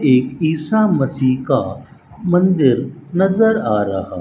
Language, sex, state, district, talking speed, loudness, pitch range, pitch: Hindi, male, Rajasthan, Bikaner, 115 wpm, -16 LUFS, 130-180 Hz, 140 Hz